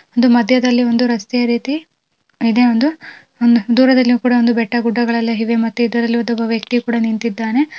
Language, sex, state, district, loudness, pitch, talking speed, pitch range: Kannada, female, Karnataka, Raichur, -15 LUFS, 235 Hz, 130 wpm, 230-245 Hz